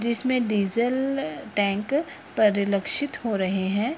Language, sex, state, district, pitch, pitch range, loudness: Hindi, female, Bihar, Purnia, 225 Hz, 200-260 Hz, -24 LUFS